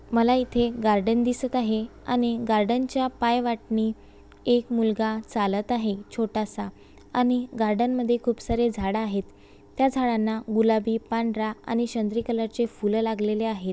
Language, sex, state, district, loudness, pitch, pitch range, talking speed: Marathi, female, Maharashtra, Chandrapur, -25 LUFS, 225 Hz, 220-240 Hz, 145 wpm